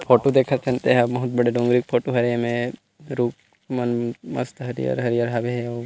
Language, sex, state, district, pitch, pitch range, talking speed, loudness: Chhattisgarhi, male, Chhattisgarh, Rajnandgaon, 120 Hz, 120-125 Hz, 185 wpm, -22 LUFS